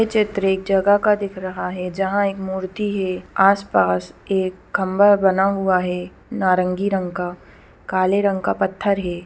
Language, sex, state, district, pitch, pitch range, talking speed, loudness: Hindi, female, Bihar, Gopalganj, 190 Hz, 185-200 Hz, 170 wpm, -20 LUFS